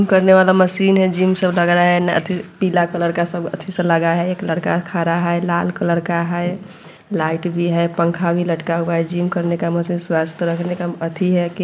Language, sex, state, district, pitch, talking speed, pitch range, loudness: Hindi, female, Bihar, Sitamarhi, 175 Hz, 225 wpm, 170-180 Hz, -18 LUFS